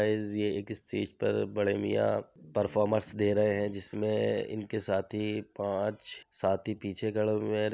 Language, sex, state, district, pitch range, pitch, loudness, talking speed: Hindi, male, Uttar Pradesh, Jyotiba Phule Nagar, 100-105 Hz, 105 Hz, -31 LUFS, 165 wpm